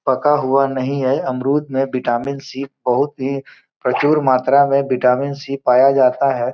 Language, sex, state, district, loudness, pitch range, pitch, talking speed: Hindi, male, Bihar, Gopalganj, -17 LUFS, 130-140 Hz, 135 Hz, 165 wpm